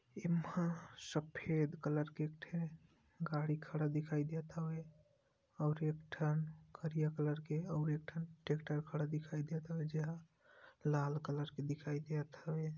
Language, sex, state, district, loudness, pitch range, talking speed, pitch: Hindi, male, Chhattisgarh, Sarguja, -41 LUFS, 150-160 Hz, 150 wpm, 155 Hz